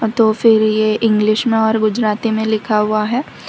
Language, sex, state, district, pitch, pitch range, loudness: Hindi, female, Gujarat, Valsad, 220 Hz, 215-225 Hz, -15 LUFS